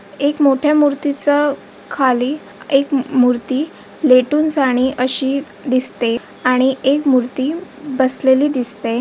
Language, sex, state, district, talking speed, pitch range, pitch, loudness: Marathi, female, Maharashtra, Aurangabad, 100 wpm, 255-290 Hz, 270 Hz, -16 LUFS